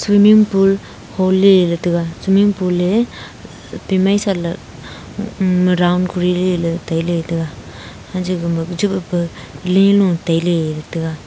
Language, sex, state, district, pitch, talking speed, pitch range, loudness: Wancho, female, Arunachal Pradesh, Longding, 180 Hz, 140 wpm, 170-195 Hz, -16 LUFS